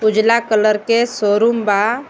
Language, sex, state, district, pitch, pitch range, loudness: Bhojpuri, female, Jharkhand, Palamu, 220 Hz, 215-230 Hz, -15 LUFS